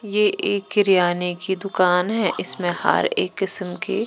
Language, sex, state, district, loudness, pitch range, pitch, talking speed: Hindi, female, Punjab, Pathankot, -19 LUFS, 180-205 Hz, 190 Hz, 160 wpm